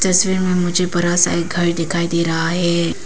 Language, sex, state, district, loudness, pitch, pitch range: Hindi, female, Arunachal Pradesh, Papum Pare, -17 LUFS, 175 Hz, 170-180 Hz